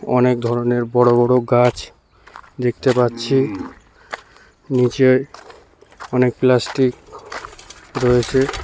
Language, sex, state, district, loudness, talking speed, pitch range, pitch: Bengali, male, West Bengal, Cooch Behar, -17 LUFS, 75 wpm, 120-130 Hz, 125 Hz